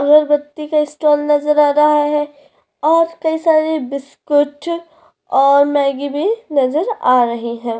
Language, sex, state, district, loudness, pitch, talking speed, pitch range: Hindi, female, Chhattisgarh, Korba, -15 LUFS, 295 Hz, 140 wpm, 285-315 Hz